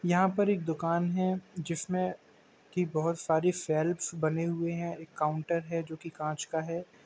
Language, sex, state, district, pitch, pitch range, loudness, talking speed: Hindi, male, Uttar Pradesh, Jalaun, 170 Hz, 160-180 Hz, -32 LUFS, 180 wpm